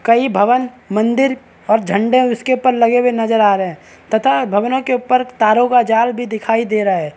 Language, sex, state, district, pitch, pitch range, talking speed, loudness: Hindi, male, Chhattisgarh, Balrampur, 235 Hz, 215-250 Hz, 210 wpm, -15 LUFS